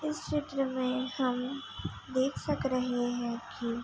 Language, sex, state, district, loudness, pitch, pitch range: Hindi, female, Uttar Pradesh, Budaun, -33 LUFS, 255 Hz, 245-270 Hz